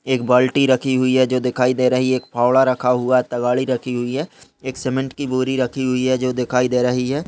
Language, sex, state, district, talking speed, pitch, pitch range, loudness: Hindi, male, Rajasthan, Churu, 255 wpm, 130 Hz, 125-130 Hz, -18 LUFS